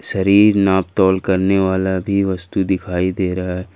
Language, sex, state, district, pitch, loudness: Hindi, male, Jharkhand, Ranchi, 95 Hz, -16 LUFS